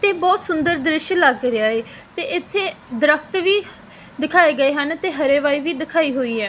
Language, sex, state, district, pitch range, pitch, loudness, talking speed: Punjabi, female, Punjab, Fazilka, 270-360 Hz, 310 Hz, -18 LUFS, 185 wpm